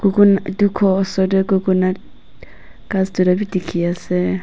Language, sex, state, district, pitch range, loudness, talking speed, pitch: Nagamese, female, Nagaland, Dimapur, 185-195 Hz, -17 LUFS, 120 wpm, 190 Hz